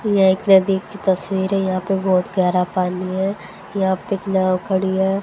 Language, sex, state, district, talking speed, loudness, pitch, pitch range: Hindi, female, Haryana, Jhajjar, 205 wpm, -19 LUFS, 190 Hz, 185-195 Hz